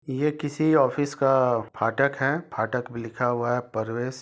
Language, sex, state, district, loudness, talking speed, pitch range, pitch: Hindi, male, Jharkhand, Sahebganj, -25 LUFS, 185 wpm, 120-145 Hz, 130 Hz